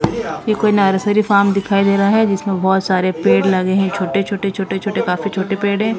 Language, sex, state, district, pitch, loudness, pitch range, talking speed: Hindi, female, Maharashtra, Mumbai Suburban, 195 Hz, -16 LUFS, 190-205 Hz, 210 wpm